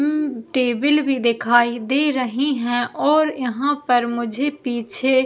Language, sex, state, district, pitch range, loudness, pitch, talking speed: Hindi, female, Chhattisgarh, Jashpur, 240-285 Hz, -19 LUFS, 260 Hz, 150 wpm